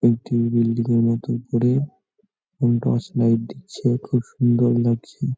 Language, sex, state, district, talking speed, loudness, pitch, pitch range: Bengali, male, West Bengal, North 24 Parganas, 135 wpm, -21 LUFS, 120 Hz, 120-125 Hz